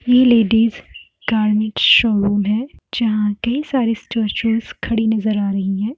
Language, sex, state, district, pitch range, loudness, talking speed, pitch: Hindi, female, Bihar, Darbhanga, 210-235 Hz, -17 LUFS, 130 wpm, 225 Hz